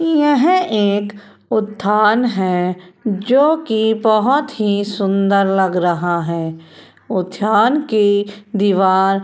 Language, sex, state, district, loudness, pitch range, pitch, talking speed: Hindi, female, Uttar Pradesh, Etah, -16 LUFS, 190-220 Hz, 205 Hz, 95 wpm